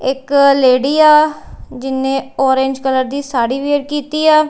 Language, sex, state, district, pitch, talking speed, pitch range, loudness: Punjabi, female, Punjab, Kapurthala, 275 Hz, 145 wpm, 265-295 Hz, -14 LUFS